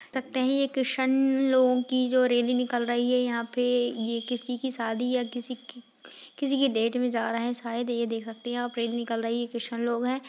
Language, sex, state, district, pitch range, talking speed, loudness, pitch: Hindi, female, Bihar, Jahanabad, 235-255 Hz, 225 wpm, -27 LUFS, 245 Hz